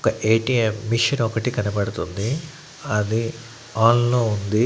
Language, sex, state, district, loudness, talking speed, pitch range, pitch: Telugu, male, Andhra Pradesh, Annamaya, -21 LUFS, 115 wpm, 110-120 Hz, 115 Hz